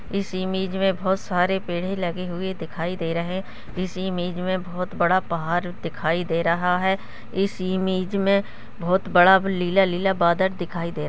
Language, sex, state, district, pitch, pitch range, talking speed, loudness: Hindi, female, Uttarakhand, Tehri Garhwal, 185 Hz, 175-190 Hz, 195 wpm, -23 LUFS